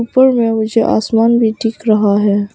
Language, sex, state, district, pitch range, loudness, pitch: Hindi, female, Arunachal Pradesh, Papum Pare, 215-230 Hz, -13 LUFS, 225 Hz